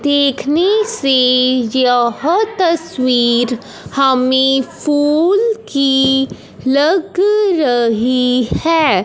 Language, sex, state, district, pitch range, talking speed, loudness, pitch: Hindi, male, Punjab, Fazilka, 255-330 Hz, 65 wpm, -14 LUFS, 270 Hz